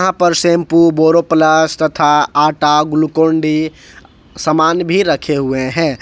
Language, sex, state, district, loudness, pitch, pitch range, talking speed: Hindi, male, Jharkhand, Ranchi, -13 LUFS, 160 Hz, 150-165 Hz, 120 wpm